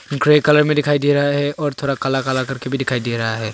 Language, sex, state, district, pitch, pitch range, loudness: Hindi, male, Arunachal Pradesh, Longding, 140 Hz, 130-145 Hz, -17 LUFS